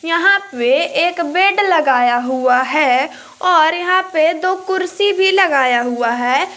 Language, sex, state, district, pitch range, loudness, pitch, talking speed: Hindi, female, Jharkhand, Garhwa, 260-370 Hz, -14 LUFS, 325 Hz, 145 wpm